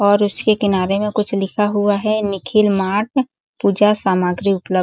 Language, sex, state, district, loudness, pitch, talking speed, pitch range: Hindi, female, Chhattisgarh, Sarguja, -17 LUFS, 205 Hz, 175 wpm, 195-210 Hz